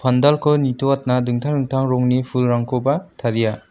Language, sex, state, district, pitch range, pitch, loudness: Garo, female, Meghalaya, West Garo Hills, 125-140 Hz, 125 Hz, -19 LUFS